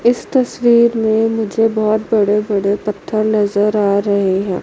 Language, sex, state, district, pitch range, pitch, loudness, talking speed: Hindi, female, Chandigarh, Chandigarh, 205-225 Hz, 215 Hz, -15 LUFS, 155 wpm